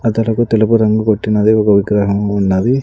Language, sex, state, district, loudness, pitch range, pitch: Telugu, male, Andhra Pradesh, Sri Satya Sai, -13 LUFS, 105-115 Hz, 110 Hz